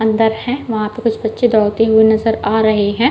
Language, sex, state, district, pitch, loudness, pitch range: Hindi, female, Chhattisgarh, Balrampur, 220 Hz, -14 LUFS, 220-230 Hz